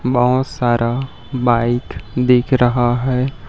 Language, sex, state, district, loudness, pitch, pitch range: Hindi, male, Chhattisgarh, Raipur, -17 LUFS, 125 Hz, 120-130 Hz